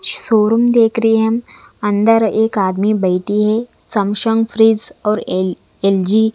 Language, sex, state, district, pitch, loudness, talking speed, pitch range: Hindi, female, Punjab, Kapurthala, 220 Hz, -15 LUFS, 140 wpm, 205-225 Hz